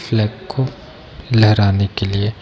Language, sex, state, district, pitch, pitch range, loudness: Hindi, male, Bihar, Darbhanga, 105 Hz, 100-115 Hz, -17 LUFS